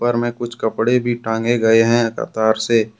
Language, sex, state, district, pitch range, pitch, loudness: Hindi, male, Jharkhand, Deoghar, 110-120 Hz, 115 Hz, -17 LUFS